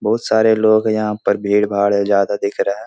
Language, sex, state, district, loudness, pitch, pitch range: Hindi, male, Bihar, Supaul, -16 LUFS, 105 Hz, 100-110 Hz